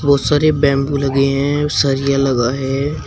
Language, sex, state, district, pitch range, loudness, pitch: Hindi, male, Uttar Pradesh, Shamli, 135-145 Hz, -15 LUFS, 140 Hz